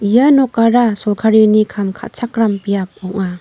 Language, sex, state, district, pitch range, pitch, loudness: Garo, female, Meghalaya, North Garo Hills, 200-235 Hz, 215 Hz, -14 LUFS